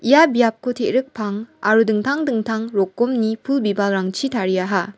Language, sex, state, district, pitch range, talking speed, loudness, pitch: Garo, female, Meghalaya, West Garo Hills, 205-250 Hz, 130 wpm, -19 LUFS, 225 Hz